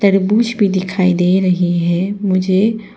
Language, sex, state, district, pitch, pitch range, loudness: Hindi, female, Arunachal Pradesh, Papum Pare, 190 Hz, 180-205 Hz, -15 LUFS